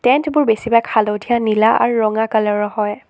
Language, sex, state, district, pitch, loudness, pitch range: Assamese, female, Assam, Sonitpur, 220 Hz, -16 LUFS, 215-235 Hz